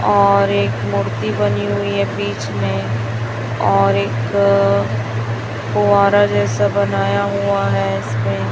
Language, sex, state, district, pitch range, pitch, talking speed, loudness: Hindi, female, Chhattisgarh, Raipur, 100-110 Hz, 100 Hz, 120 wpm, -17 LUFS